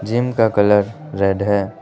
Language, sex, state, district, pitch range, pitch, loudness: Hindi, male, Arunachal Pradesh, Lower Dibang Valley, 100-115 Hz, 105 Hz, -17 LUFS